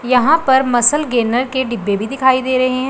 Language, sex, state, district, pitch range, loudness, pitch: Hindi, female, Punjab, Pathankot, 240-260 Hz, -14 LUFS, 255 Hz